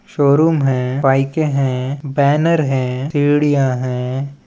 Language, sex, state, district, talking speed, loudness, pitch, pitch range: Chhattisgarhi, male, Chhattisgarh, Balrampur, 105 wpm, -16 LUFS, 140 Hz, 130-145 Hz